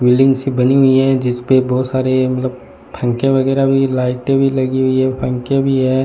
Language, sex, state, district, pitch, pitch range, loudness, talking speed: Hindi, male, Rajasthan, Bikaner, 130 Hz, 130-135 Hz, -15 LUFS, 200 wpm